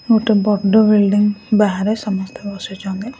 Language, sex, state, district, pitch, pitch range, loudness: Odia, female, Odisha, Khordha, 210 Hz, 200-215 Hz, -16 LUFS